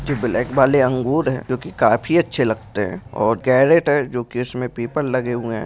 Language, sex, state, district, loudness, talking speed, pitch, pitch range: Hindi, male, Bihar, Jamui, -19 LUFS, 220 wpm, 125 Hz, 120-140 Hz